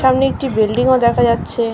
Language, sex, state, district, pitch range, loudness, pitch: Bengali, female, West Bengal, North 24 Parganas, 230-260 Hz, -15 LUFS, 245 Hz